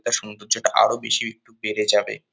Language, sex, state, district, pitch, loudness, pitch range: Bengali, male, West Bengal, North 24 Parganas, 105 Hz, -21 LUFS, 105-115 Hz